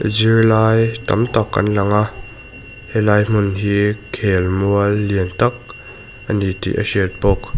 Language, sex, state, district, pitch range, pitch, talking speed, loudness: Mizo, male, Mizoram, Aizawl, 100-110 Hz, 105 Hz, 125 wpm, -17 LUFS